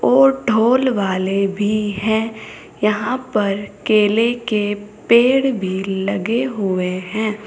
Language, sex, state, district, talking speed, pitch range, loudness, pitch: Hindi, female, Uttar Pradesh, Saharanpur, 110 wpm, 200-235 Hz, -18 LUFS, 210 Hz